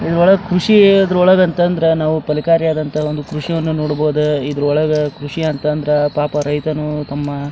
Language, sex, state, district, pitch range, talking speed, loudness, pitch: Kannada, male, Karnataka, Dharwad, 150-165 Hz, 170 wpm, -15 LUFS, 150 Hz